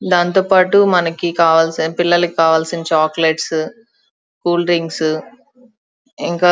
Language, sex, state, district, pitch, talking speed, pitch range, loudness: Telugu, female, Andhra Pradesh, Chittoor, 175 Hz, 90 wpm, 160-185 Hz, -15 LUFS